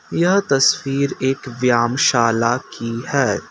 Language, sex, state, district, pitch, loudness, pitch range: Hindi, male, Assam, Kamrup Metropolitan, 130 Hz, -18 LUFS, 120-140 Hz